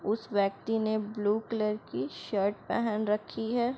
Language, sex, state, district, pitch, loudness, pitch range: Hindi, female, Uttar Pradesh, Gorakhpur, 215 Hz, -31 LUFS, 205-225 Hz